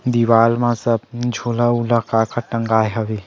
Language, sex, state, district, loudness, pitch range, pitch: Chhattisgarhi, male, Chhattisgarh, Sarguja, -18 LUFS, 110-120 Hz, 115 Hz